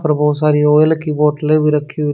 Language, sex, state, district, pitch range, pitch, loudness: Hindi, male, Haryana, Rohtak, 150-155 Hz, 150 Hz, -14 LUFS